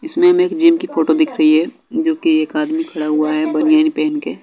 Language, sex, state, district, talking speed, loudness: Hindi, male, Bihar, West Champaran, 255 wpm, -15 LUFS